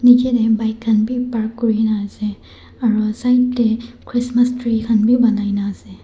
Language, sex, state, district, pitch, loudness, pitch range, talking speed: Nagamese, male, Nagaland, Dimapur, 225 Hz, -17 LUFS, 215-245 Hz, 170 wpm